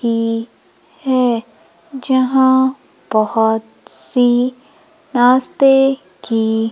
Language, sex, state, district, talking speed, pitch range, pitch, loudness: Hindi, female, Madhya Pradesh, Umaria, 65 wpm, 225-265 Hz, 250 Hz, -15 LUFS